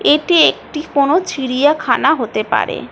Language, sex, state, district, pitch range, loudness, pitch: Bengali, female, West Bengal, Jhargram, 280-325 Hz, -14 LUFS, 295 Hz